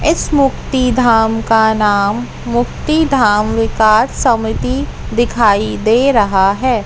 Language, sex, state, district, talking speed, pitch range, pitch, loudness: Hindi, female, Madhya Pradesh, Katni, 115 wpm, 215-255 Hz, 225 Hz, -13 LUFS